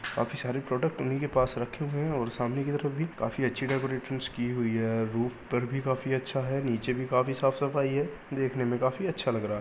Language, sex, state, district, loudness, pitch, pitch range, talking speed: Hindi, male, Uttar Pradesh, Muzaffarnagar, -30 LUFS, 130 Hz, 120-140 Hz, 250 wpm